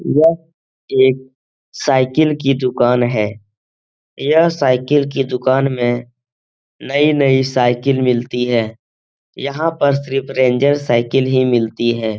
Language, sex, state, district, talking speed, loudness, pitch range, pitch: Hindi, male, Bihar, Lakhisarai, 115 wpm, -15 LUFS, 120-140 Hz, 130 Hz